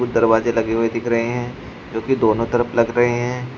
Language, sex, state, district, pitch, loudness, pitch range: Hindi, male, Uttar Pradesh, Shamli, 120 Hz, -19 LUFS, 115-120 Hz